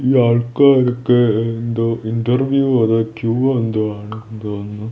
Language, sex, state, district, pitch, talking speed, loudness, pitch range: Malayalam, male, Kerala, Thiruvananthapuram, 115 Hz, 110 wpm, -16 LUFS, 110-125 Hz